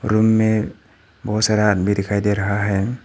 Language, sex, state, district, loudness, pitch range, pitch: Hindi, male, Arunachal Pradesh, Papum Pare, -18 LUFS, 100-110 Hz, 105 Hz